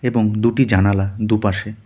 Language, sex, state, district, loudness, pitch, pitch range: Bengali, male, West Bengal, Darjeeling, -17 LUFS, 110 Hz, 100-115 Hz